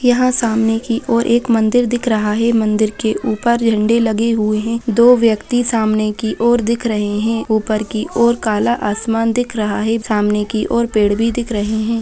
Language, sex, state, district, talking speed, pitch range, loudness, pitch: Hindi, female, Bihar, Jahanabad, 200 wpm, 215-235 Hz, -16 LUFS, 225 Hz